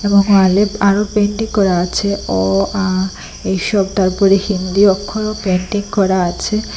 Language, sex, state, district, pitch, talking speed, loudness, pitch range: Bengali, female, Assam, Hailakandi, 200 Hz, 135 wpm, -15 LUFS, 190-205 Hz